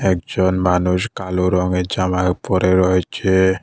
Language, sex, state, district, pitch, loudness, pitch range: Bengali, male, Tripura, West Tripura, 90 Hz, -18 LUFS, 90-95 Hz